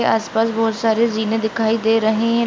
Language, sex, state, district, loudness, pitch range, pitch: Hindi, female, Uttar Pradesh, Jalaun, -18 LUFS, 220-225 Hz, 225 Hz